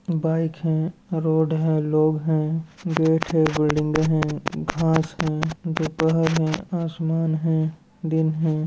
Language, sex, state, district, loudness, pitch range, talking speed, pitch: Hindi, male, Rajasthan, Nagaur, -23 LUFS, 155-165 Hz, 125 wpm, 160 Hz